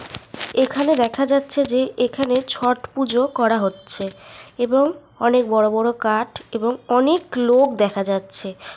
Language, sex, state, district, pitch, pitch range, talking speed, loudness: Bengali, female, Jharkhand, Sahebganj, 245 Hz, 225-270 Hz, 130 wpm, -19 LUFS